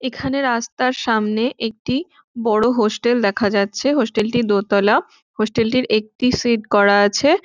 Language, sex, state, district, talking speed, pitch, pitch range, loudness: Bengali, female, West Bengal, Jhargram, 120 wpm, 230 Hz, 215-255 Hz, -18 LUFS